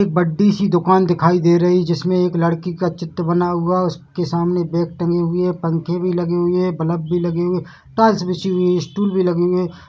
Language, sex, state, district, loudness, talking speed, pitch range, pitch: Hindi, male, Chhattisgarh, Bilaspur, -18 LUFS, 210 wpm, 170-180 Hz, 175 Hz